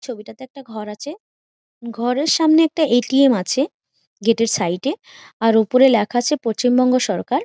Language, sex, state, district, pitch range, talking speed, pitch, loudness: Bengali, female, West Bengal, Jhargram, 225-275 Hz, 195 wpm, 245 Hz, -17 LUFS